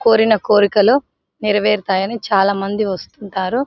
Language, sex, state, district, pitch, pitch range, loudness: Telugu, female, Telangana, Nalgonda, 210 Hz, 195-220 Hz, -16 LUFS